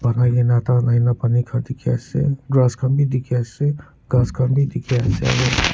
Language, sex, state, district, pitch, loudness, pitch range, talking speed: Nagamese, male, Nagaland, Kohima, 125 Hz, -19 LUFS, 120-130 Hz, 240 wpm